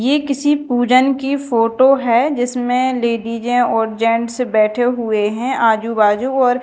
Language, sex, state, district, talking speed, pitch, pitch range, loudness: Hindi, female, Madhya Pradesh, Dhar, 145 wpm, 245 Hz, 230-260 Hz, -16 LUFS